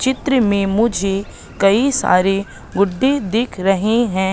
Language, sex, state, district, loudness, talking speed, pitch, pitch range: Hindi, female, Madhya Pradesh, Katni, -17 LUFS, 125 wpm, 200 Hz, 195-240 Hz